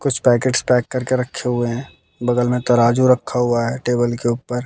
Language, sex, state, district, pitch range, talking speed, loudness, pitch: Hindi, male, Bihar, West Champaran, 120-125 Hz, 205 wpm, -18 LUFS, 125 Hz